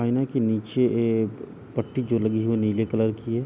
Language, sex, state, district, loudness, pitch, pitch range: Hindi, male, Uttar Pradesh, Jalaun, -24 LUFS, 115 Hz, 110-125 Hz